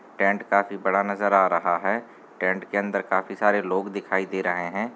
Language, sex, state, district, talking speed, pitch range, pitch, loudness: Hindi, male, Chhattisgarh, Sarguja, 205 wpm, 95-100 Hz, 100 Hz, -24 LUFS